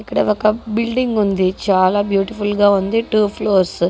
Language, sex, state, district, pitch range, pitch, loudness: Telugu, female, Andhra Pradesh, Guntur, 195-215 Hz, 205 Hz, -16 LUFS